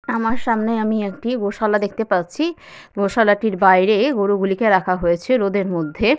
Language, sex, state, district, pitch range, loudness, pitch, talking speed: Bengali, female, West Bengal, Malda, 190-230 Hz, -18 LUFS, 210 Hz, 135 wpm